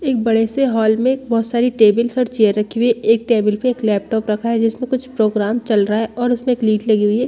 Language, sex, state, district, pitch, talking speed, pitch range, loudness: Hindi, female, Chhattisgarh, Bastar, 225 Hz, 265 wpm, 215-245 Hz, -17 LUFS